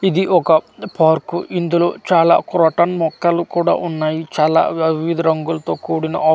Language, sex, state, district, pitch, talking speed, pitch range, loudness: Telugu, male, Andhra Pradesh, Manyam, 165 Hz, 150 wpm, 160-170 Hz, -16 LUFS